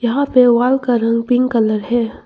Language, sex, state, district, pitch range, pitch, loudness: Hindi, female, Arunachal Pradesh, Longding, 230-250 Hz, 240 Hz, -15 LUFS